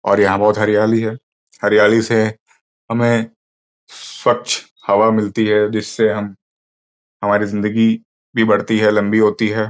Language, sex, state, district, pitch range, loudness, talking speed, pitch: Hindi, male, Uttar Pradesh, Gorakhpur, 105-110 Hz, -16 LUFS, 135 wpm, 105 Hz